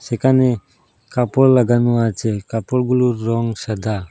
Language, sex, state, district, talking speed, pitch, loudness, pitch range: Bengali, male, Assam, Hailakandi, 100 wpm, 120 Hz, -17 LUFS, 110-125 Hz